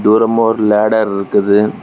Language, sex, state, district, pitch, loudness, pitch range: Tamil, male, Tamil Nadu, Kanyakumari, 105 Hz, -13 LUFS, 105-110 Hz